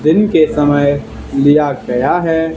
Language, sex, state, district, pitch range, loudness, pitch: Hindi, male, Haryana, Charkhi Dadri, 145-160 Hz, -13 LUFS, 150 Hz